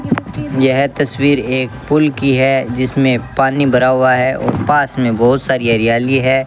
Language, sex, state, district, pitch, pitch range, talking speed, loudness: Hindi, male, Rajasthan, Bikaner, 130 Hz, 125-135 Hz, 165 wpm, -14 LUFS